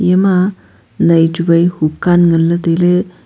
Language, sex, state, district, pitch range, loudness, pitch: Wancho, female, Arunachal Pradesh, Longding, 165-180 Hz, -12 LUFS, 175 Hz